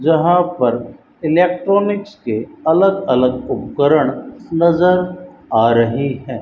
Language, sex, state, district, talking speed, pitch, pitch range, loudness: Hindi, female, Rajasthan, Bikaner, 105 wpm, 160 Hz, 125-180 Hz, -16 LUFS